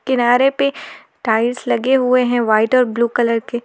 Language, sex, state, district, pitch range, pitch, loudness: Hindi, female, Jharkhand, Garhwa, 235-255 Hz, 240 Hz, -16 LUFS